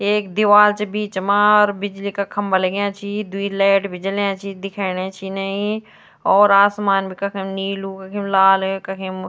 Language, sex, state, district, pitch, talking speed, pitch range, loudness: Garhwali, female, Uttarakhand, Tehri Garhwal, 195 Hz, 180 wpm, 195-205 Hz, -18 LUFS